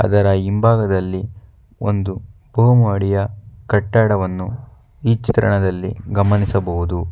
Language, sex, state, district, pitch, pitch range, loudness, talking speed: Kannada, male, Karnataka, Bangalore, 100 Hz, 95-110 Hz, -18 LUFS, 65 wpm